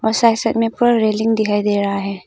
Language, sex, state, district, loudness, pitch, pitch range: Hindi, female, Arunachal Pradesh, Papum Pare, -16 LUFS, 220 Hz, 205-225 Hz